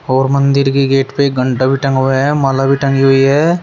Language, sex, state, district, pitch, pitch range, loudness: Hindi, male, Uttar Pradesh, Shamli, 135 Hz, 135-140 Hz, -12 LUFS